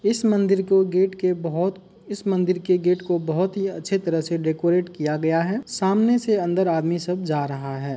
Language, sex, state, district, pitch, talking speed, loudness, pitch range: Hindi, male, Uttar Pradesh, Muzaffarnagar, 180 Hz, 195 wpm, -22 LUFS, 165-195 Hz